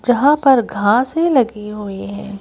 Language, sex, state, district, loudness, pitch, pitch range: Hindi, female, Madhya Pradesh, Bhopal, -16 LUFS, 220 Hz, 205-265 Hz